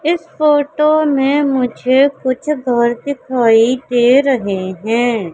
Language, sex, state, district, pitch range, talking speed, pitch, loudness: Hindi, female, Madhya Pradesh, Katni, 240-290 Hz, 110 wpm, 260 Hz, -14 LUFS